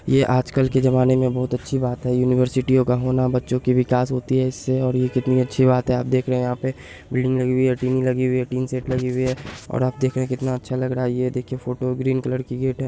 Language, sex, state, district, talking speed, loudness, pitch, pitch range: Hindi, male, Bihar, Saharsa, 280 wpm, -21 LUFS, 130 Hz, 125-130 Hz